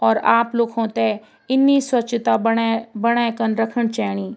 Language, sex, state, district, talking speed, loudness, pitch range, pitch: Garhwali, female, Uttarakhand, Tehri Garhwal, 150 wpm, -19 LUFS, 225-235 Hz, 230 Hz